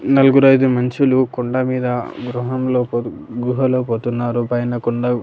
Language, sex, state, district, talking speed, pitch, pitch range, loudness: Telugu, male, Andhra Pradesh, Annamaya, 115 wpm, 125 Hz, 120-130 Hz, -17 LUFS